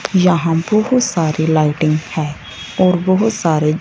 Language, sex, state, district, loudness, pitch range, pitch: Hindi, female, Punjab, Fazilka, -15 LUFS, 155-185 Hz, 165 Hz